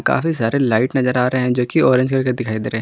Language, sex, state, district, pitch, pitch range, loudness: Hindi, male, Jharkhand, Ranchi, 125 Hz, 120-130 Hz, -17 LUFS